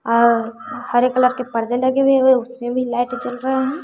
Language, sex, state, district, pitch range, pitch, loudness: Hindi, female, Bihar, West Champaran, 240-260 Hz, 250 Hz, -18 LUFS